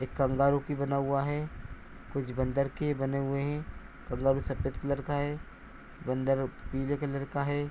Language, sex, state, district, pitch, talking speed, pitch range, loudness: Hindi, male, Bihar, Purnia, 140 Hz, 170 wpm, 135-145 Hz, -32 LUFS